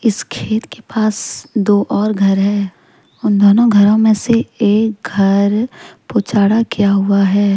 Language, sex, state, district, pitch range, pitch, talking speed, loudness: Hindi, female, Jharkhand, Deoghar, 200-220 Hz, 210 Hz, 150 wpm, -14 LUFS